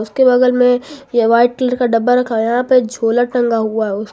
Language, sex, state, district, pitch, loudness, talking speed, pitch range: Hindi, female, Jharkhand, Garhwa, 245 Hz, -14 LUFS, 230 wpm, 230-250 Hz